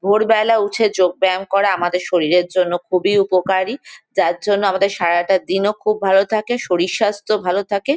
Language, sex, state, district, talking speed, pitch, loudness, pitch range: Bengali, female, West Bengal, Jalpaiguri, 165 wpm, 195 Hz, -17 LUFS, 185-210 Hz